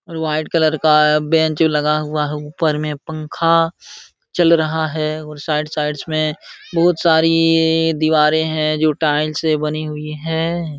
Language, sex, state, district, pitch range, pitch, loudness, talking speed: Hindi, male, Uttar Pradesh, Jalaun, 150-160 Hz, 155 Hz, -17 LUFS, 155 wpm